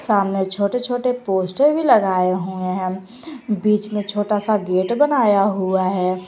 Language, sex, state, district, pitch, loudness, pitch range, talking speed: Hindi, female, Jharkhand, Garhwa, 200 Hz, -19 LUFS, 185-225 Hz, 155 wpm